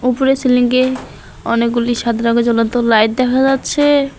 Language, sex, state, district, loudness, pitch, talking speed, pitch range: Bengali, male, West Bengal, Alipurduar, -14 LUFS, 250 Hz, 130 wpm, 235-260 Hz